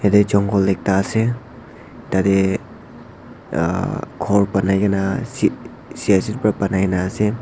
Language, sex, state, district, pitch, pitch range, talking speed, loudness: Nagamese, male, Nagaland, Dimapur, 100 Hz, 95-105 Hz, 120 wpm, -19 LUFS